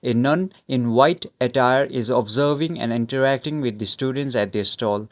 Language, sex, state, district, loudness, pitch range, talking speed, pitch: English, male, Sikkim, Gangtok, -20 LUFS, 115-140 Hz, 175 wpm, 125 Hz